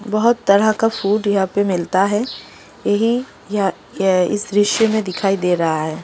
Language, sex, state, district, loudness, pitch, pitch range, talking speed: Hindi, female, Delhi, New Delhi, -18 LUFS, 205 Hz, 190-215 Hz, 180 wpm